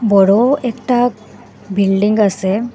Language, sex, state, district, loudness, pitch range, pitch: Bengali, female, Assam, Hailakandi, -14 LUFS, 200-240 Hz, 215 Hz